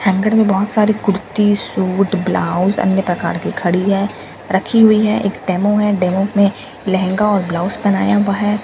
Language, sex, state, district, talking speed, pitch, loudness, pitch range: Hindi, female, Bihar, Katihar, 185 wpm, 200 Hz, -15 LUFS, 190-210 Hz